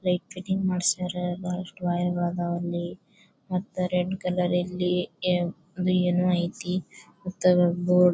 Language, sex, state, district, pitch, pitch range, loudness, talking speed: Kannada, female, Karnataka, Bijapur, 180 Hz, 175-185 Hz, -26 LUFS, 110 wpm